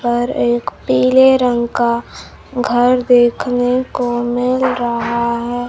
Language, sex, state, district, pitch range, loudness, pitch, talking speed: Hindi, female, Bihar, Kaimur, 235-250 Hz, -15 LUFS, 240 Hz, 115 wpm